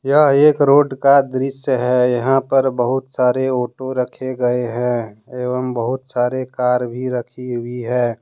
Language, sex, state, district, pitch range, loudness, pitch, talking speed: Hindi, male, Jharkhand, Deoghar, 125-135 Hz, -17 LUFS, 125 Hz, 160 wpm